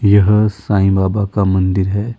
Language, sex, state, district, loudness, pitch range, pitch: Hindi, male, Himachal Pradesh, Shimla, -14 LUFS, 95-105 Hz, 100 Hz